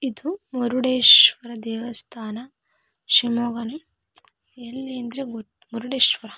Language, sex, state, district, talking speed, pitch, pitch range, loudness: Kannada, female, Karnataka, Shimoga, 75 wpm, 240 Hz, 230-260 Hz, -17 LUFS